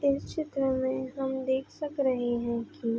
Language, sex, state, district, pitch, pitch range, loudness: Hindi, female, Uttar Pradesh, Budaun, 265 Hz, 250-275 Hz, -30 LUFS